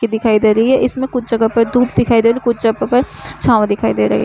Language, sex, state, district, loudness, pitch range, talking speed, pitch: Hindi, female, Uttar Pradesh, Budaun, -14 LUFS, 220-245 Hz, 325 wpm, 230 Hz